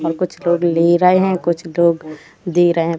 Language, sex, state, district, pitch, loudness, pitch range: Hindi, female, Madhya Pradesh, Katni, 170 Hz, -16 LUFS, 165-175 Hz